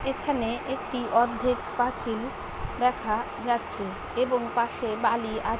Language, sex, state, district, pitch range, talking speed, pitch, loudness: Bengali, female, West Bengal, Paschim Medinipur, 230-250 Hz, 120 wpm, 240 Hz, -28 LUFS